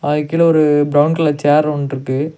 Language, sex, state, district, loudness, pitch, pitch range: Tamil, male, Tamil Nadu, Nilgiris, -14 LUFS, 150 Hz, 145-155 Hz